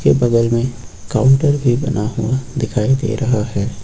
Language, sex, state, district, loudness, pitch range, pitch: Hindi, male, Uttar Pradesh, Lucknow, -17 LUFS, 110-130 Hz, 120 Hz